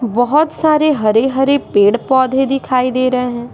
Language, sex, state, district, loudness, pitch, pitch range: Hindi, female, Bihar, Patna, -14 LUFS, 255 Hz, 240-275 Hz